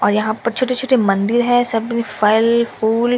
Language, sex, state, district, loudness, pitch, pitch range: Hindi, female, Bihar, Katihar, -16 LUFS, 235 Hz, 215-245 Hz